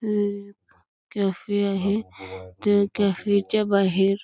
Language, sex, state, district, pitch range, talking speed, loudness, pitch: Marathi, female, Karnataka, Belgaum, 195-205 Hz, 115 wpm, -23 LUFS, 200 Hz